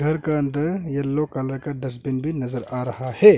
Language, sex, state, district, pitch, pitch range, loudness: Hindi, male, Arunachal Pradesh, Longding, 140 Hz, 130-155 Hz, -24 LUFS